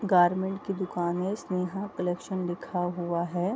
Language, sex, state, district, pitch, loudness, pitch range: Hindi, female, Bihar, East Champaran, 180 Hz, -29 LUFS, 175-190 Hz